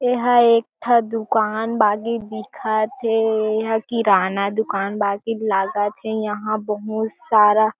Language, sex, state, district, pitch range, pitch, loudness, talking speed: Chhattisgarhi, female, Chhattisgarh, Jashpur, 210-225 Hz, 220 Hz, -20 LUFS, 125 wpm